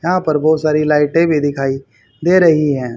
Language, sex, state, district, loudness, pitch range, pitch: Hindi, male, Haryana, Charkhi Dadri, -14 LUFS, 135-160 Hz, 150 Hz